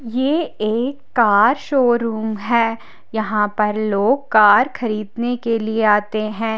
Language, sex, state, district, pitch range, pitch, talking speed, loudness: Hindi, female, Haryana, Charkhi Dadri, 215-245 Hz, 225 Hz, 130 wpm, -18 LUFS